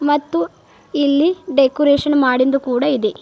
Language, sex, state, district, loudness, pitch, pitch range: Kannada, female, Karnataka, Bidar, -16 LUFS, 285 Hz, 270-295 Hz